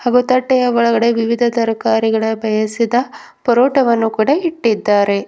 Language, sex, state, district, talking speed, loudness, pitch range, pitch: Kannada, female, Karnataka, Bidar, 100 wpm, -15 LUFS, 220-245 Hz, 230 Hz